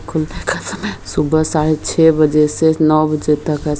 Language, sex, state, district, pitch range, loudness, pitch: Hindi, female, Bihar, Jahanabad, 150-155 Hz, -15 LUFS, 155 Hz